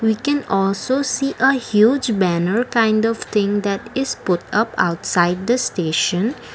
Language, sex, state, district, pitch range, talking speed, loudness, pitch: English, female, Assam, Kamrup Metropolitan, 195-250 Hz, 155 wpm, -18 LUFS, 220 Hz